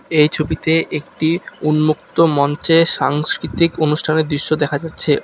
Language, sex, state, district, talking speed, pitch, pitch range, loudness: Bengali, male, West Bengal, Alipurduar, 115 wpm, 155 Hz, 150-165 Hz, -16 LUFS